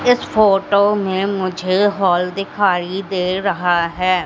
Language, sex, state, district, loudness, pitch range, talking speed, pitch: Hindi, female, Madhya Pradesh, Katni, -17 LUFS, 180-200 Hz, 125 wpm, 190 Hz